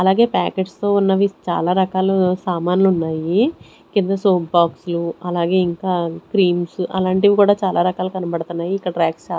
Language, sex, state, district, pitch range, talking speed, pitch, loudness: Telugu, female, Andhra Pradesh, Sri Satya Sai, 170-190 Hz, 140 wpm, 185 Hz, -18 LUFS